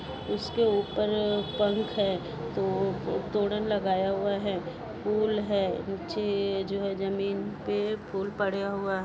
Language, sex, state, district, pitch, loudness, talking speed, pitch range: Hindi, female, Maharashtra, Solapur, 200 Hz, -29 LUFS, 125 wpm, 195-210 Hz